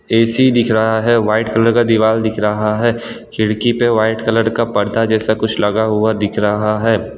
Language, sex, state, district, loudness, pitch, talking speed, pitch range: Hindi, male, Gujarat, Valsad, -15 LUFS, 110 Hz, 200 wpm, 110-115 Hz